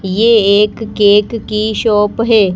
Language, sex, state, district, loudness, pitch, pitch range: Hindi, female, Madhya Pradesh, Bhopal, -12 LUFS, 210 Hz, 205-225 Hz